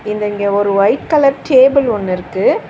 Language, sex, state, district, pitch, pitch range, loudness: Tamil, female, Tamil Nadu, Chennai, 210 Hz, 200-265 Hz, -13 LUFS